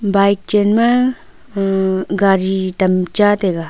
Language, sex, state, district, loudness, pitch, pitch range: Wancho, female, Arunachal Pradesh, Longding, -15 LUFS, 195 Hz, 190-205 Hz